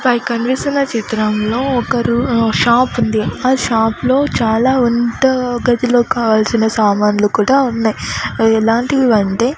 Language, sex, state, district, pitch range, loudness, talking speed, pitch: Telugu, female, Andhra Pradesh, Sri Satya Sai, 220-255 Hz, -14 LUFS, 115 wpm, 235 Hz